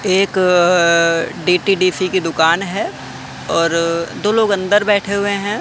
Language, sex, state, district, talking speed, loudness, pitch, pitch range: Hindi, male, Madhya Pradesh, Katni, 140 wpm, -15 LUFS, 185 Hz, 170-200 Hz